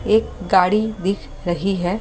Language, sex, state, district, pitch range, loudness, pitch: Hindi, male, Delhi, New Delhi, 180-210 Hz, -20 LUFS, 195 Hz